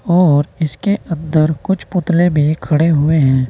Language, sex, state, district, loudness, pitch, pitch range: Hindi, male, Uttar Pradesh, Saharanpur, -15 LUFS, 160 Hz, 150-175 Hz